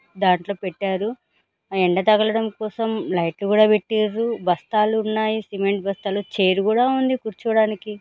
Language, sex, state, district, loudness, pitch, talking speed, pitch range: Telugu, female, Andhra Pradesh, Krishna, -21 LUFS, 215 Hz, 125 wpm, 195-220 Hz